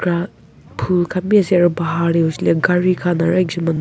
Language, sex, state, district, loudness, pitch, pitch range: Nagamese, female, Nagaland, Kohima, -17 LUFS, 175 Hz, 170-185 Hz